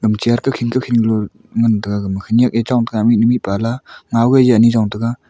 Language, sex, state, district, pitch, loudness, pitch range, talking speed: Wancho, male, Arunachal Pradesh, Longding, 115 Hz, -15 LUFS, 110-120 Hz, 205 wpm